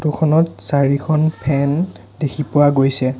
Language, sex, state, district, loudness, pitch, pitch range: Assamese, male, Assam, Sonitpur, -16 LUFS, 145 Hz, 140-155 Hz